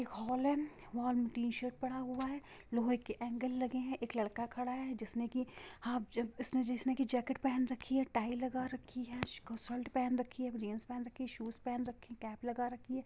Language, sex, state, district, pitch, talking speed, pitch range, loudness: Hindi, female, Bihar, Sitamarhi, 250 Hz, 225 wpm, 235-255 Hz, -39 LUFS